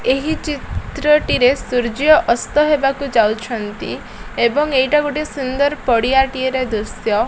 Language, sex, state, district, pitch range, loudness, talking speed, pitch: Odia, female, Odisha, Malkangiri, 235-295 Hz, -17 LUFS, 115 wpm, 265 Hz